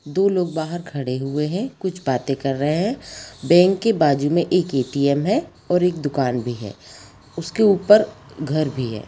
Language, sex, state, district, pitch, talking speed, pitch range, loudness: Hindi, female, Jharkhand, Sahebganj, 150 Hz, 185 wpm, 135-180 Hz, -20 LUFS